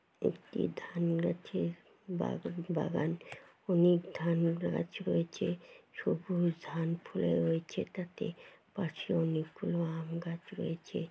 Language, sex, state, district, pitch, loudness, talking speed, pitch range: Bengali, female, West Bengal, Jalpaiguri, 170 Hz, -35 LUFS, 105 wpm, 160-175 Hz